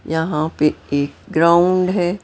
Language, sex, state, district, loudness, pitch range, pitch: Hindi, female, Maharashtra, Mumbai Suburban, -17 LUFS, 150-175 Hz, 165 Hz